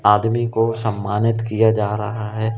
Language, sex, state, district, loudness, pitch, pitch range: Hindi, male, Madhya Pradesh, Umaria, -19 LUFS, 110 Hz, 105-115 Hz